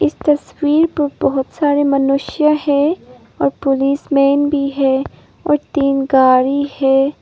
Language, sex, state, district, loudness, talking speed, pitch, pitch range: Hindi, female, Arunachal Pradesh, Papum Pare, -15 LUFS, 125 wpm, 280 Hz, 270-295 Hz